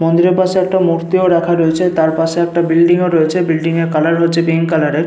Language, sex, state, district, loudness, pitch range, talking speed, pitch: Bengali, male, West Bengal, Paschim Medinipur, -13 LUFS, 165-175 Hz, 235 wpm, 170 Hz